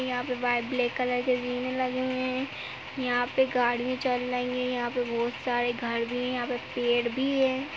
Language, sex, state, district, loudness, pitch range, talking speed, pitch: Hindi, female, Uttar Pradesh, Jyotiba Phule Nagar, -28 LUFS, 245-255 Hz, 210 wpm, 250 Hz